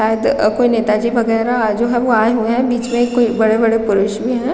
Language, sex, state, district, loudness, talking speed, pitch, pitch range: Hindi, female, Chhattisgarh, Raigarh, -15 LUFS, 250 wpm, 230 Hz, 220-240 Hz